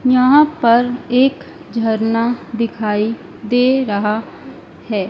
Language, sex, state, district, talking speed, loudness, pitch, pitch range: Hindi, female, Madhya Pradesh, Dhar, 95 wpm, -16 LUFS, 230 Hz, 220-255 Hz